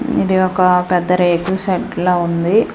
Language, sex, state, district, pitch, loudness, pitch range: Telugu, female, Andhra Pradesh, Manyam, 180 Hz, -15 LUFS, 180-190 Hz